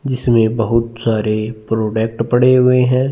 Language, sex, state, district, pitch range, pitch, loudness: Hindi, male, Punjab, Fazilka, 110-125 Hz, 115 Hz, -15 LUFS